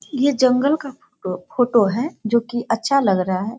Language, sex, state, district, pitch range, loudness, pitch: Hindi, female, Bihar, Sitamarhi, 220-275 Hz, -19 LUFS, 240 Hz